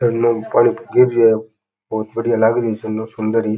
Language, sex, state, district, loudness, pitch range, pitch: Rajasthani, male, Rajasthan, Churu, -17 LUFS, 110-115 Hz, 110 Hz